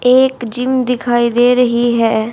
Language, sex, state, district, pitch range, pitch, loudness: Hindi, female, Haryana, Jhajjar, 235-250 Hz, 245 Hz, -13 LUFS